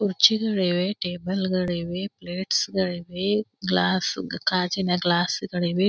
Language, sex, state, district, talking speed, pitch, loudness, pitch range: Kannada, female, Karnataka, Belgaum, 100 wpm, 185 Hz, -24 LUFS, 175-195 Hz